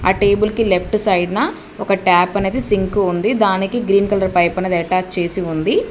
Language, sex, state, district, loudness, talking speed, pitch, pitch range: Telugu, female, Telangana, Mahabubabad, -16 LUFS, 185 wpm, 195 Hz, 185-215 Hz